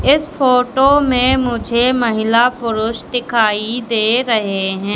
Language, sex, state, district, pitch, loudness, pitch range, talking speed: Hindi, female, Madhya Pradesh, Katni, 240 Hz, -15 LUFS, 220-255 Hz, 120 wpm